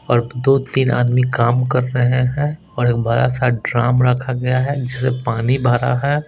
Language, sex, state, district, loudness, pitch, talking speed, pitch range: Hindi, male, Bihar, Patna, -17 LUFS, 125 Hz, 190 wpm, 120-130 Hz